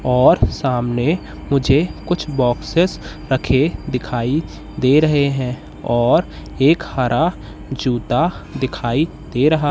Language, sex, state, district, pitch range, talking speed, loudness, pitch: Hindi, male, Madhya Pradesh, Katni, 125-155 Hz, 105 wpm, -18 LUFS, 135 Hz